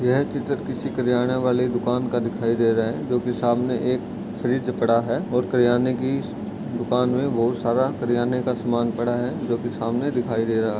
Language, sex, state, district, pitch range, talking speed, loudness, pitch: Hindi, male, Bihar, Darbhanga, 120-125 Hz, 205 wpm, -23 LUFS, 120 Hz